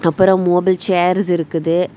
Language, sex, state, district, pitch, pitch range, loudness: Tamil, female, Tamil Nadu, Kanyakumari, 180 Hz, 170-185 Hz, -15 LUFS